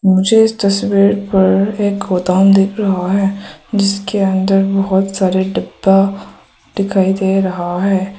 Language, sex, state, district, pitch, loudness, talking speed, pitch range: Hindi, female, Arunachal Pradesh, Papum Pare, 195 Hz, -14 LUFS, 130 wpm, 190-200 Hz